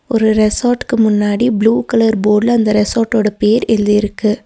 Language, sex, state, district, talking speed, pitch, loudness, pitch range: Tamil, female, Tamil Nadu, Nilgiris, 150 wpm, 220 Hz, -13 LUFS, 210-230 Hz